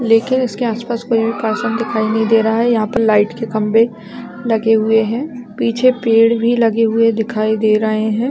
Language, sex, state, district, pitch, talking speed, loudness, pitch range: Hindi, female, Chhattisgarh, Balrampur, 225 Hz, 210 wpm, -15 LUFS, 220-235 Hz